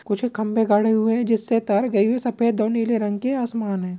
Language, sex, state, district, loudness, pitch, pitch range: Hindi, male, West Bengal, Purulia, -21 LUFS, 225 Hz, 210-235 Hz